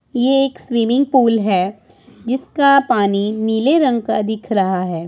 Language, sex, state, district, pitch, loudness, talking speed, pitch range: Hindi, male, Punjab, Pathankot, 230 Hz, -16 LUFS, 155 wpm, 205-265 Hz